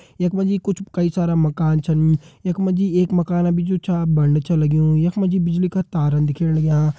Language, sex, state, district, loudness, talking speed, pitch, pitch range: Hindi, male, Uttarakhand, Tehri Garhwal, -19 LUFS, 230 wpm, 170 Hz, 155-180 Hz